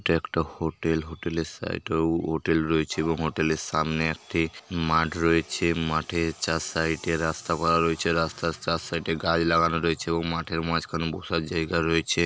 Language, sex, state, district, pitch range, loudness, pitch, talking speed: Bengali, male, West Bengal, Paschim Medinipur, 80-85 Hz, -26 LUFS, 80 Hz, 180 wpm